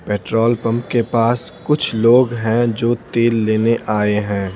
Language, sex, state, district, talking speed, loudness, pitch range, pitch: Hindi, male, Bihar, Patna, 160 wpm, -17 LUFS, 110-120 Hz, 115 Hz